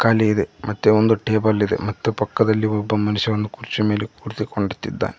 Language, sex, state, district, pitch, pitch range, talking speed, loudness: Kannada, male, Karnataka, Koppal, 105 Hz, 105-110 Hz, 150 wpm, -20 LUFS